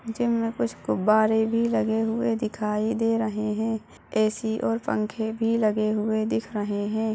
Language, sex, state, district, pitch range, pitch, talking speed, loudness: Hindi, female, Chhattisgarh, Balrampur, 215-225 Hz, 220 Hz, 170 wpm, -25 LUFS